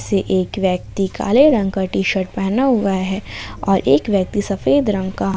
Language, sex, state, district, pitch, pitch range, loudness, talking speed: Hindi, female, Jharkhand, Ranchi, 195 Hz, 190-205 Hz, -17 LUFS, 190 wpm